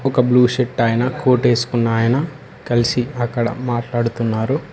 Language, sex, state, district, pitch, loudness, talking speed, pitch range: Telugu, male, Telangana, Hyderabad, 120 Hz, -18 LUFS, 100 wpm, 120-125 Hz